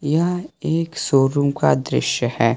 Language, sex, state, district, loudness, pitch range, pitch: Hindi, male, Jharkhand, Garhwa, -20 LUFS, 130-160 Hz, 145 Hz